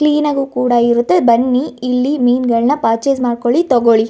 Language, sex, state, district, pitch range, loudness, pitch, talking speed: Kannada, female, Karnataka, Gulbarga, 235-275 Hz, -14 LUFS, 250 Hz, 160 wpm